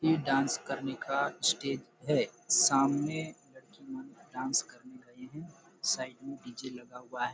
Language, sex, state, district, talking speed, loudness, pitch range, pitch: Hindi, male, Chhattisgarh, Bastar, 145 wpm, -31 LUFS, 130-160 Hz, 135 Hz